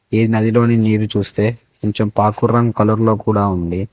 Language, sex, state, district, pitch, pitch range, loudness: Telugu, male, Telangana, Hyderabad, 110 Hz, 105-115 Hz, -16 LUFS